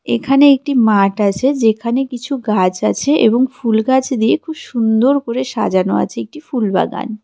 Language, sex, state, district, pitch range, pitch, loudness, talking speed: Bengali, female, West Bengal, Cooch Behar, 220-270 Hz, 240 Hz, -15 LUFS, 165 wpm